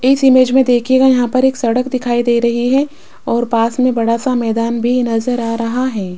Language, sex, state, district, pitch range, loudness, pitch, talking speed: Hindi, female, Rajasthan, Jaipur, 235-255 Hz, -14 LUFS, 245 Hz, 235 wpm